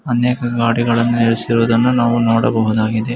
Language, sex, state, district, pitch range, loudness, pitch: Kannada, male, Karnataka, Mysore, 115-120 Hz, -15 LUFS, 115 Hz